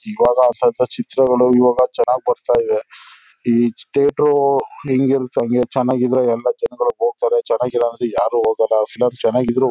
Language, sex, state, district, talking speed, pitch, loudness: Kannada, male, Karnataka, Chamarajanagar, 135 wpm, 130 Hz, -17 LUFS